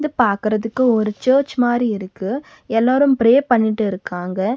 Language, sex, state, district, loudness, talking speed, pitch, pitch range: Tamil, female, Tamil Nadu, Nilgiris, -18 LUFS, 130 wpm, 230 Hz, 210-255 Hz